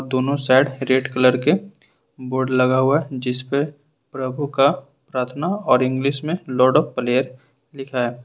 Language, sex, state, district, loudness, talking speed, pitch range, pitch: Hindi, male, Jharkhand, Ranchi, -20 LUFS, 155 wpm, 130-140 Hz, 130 Hz